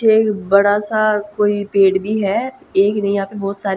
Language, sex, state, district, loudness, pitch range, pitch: Hindi, female, Haryana, Jhajjar, -16 LUFS, 200-215 Hz, 205 Hz